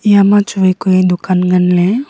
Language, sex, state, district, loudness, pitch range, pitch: Wancho, female, Arunachal Pradesh, Longding, -11 LUFS, 180-205 Hz, 185 Hz